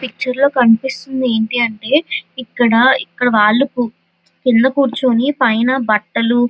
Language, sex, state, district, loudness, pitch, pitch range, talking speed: Telugu, female, Andhra Pradesh, Visakhapatnam, -15 LUFS, 250 Hz, 235-265 Hz, 120 wpm